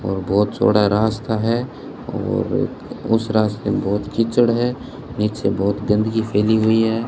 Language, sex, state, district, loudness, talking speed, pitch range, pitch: Hindi, male, Rajasthan, Bikaner, -19 LUFS, 155 wpm, 105-115 Hz, 110 Hz